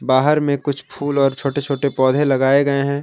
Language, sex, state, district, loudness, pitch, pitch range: Hindi, male, Jharkhand, Palamu, -18 LUFS, 140 Hz, 135-145 Hz